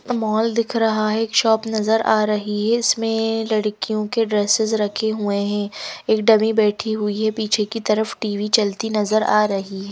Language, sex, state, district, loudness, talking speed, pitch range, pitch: Hindi, female, Madhya Pradesh, Bhopal, -19 LUFS, 180 wpm, 210-225 Hz, 215 Hz